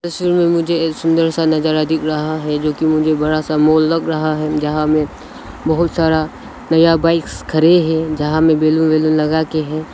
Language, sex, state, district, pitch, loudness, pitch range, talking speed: Hindi, male, Arunachal Pradesh, Lower Dibang Valley, 155 Hz, -15 LUFS, 155-165 Hz, 210 wpm